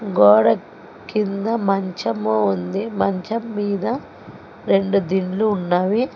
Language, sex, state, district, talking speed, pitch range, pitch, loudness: Telugu, female, Telangana, Hyderabad, 85 wpm, 185-215 Hz, 195 Hz, -20 LUFS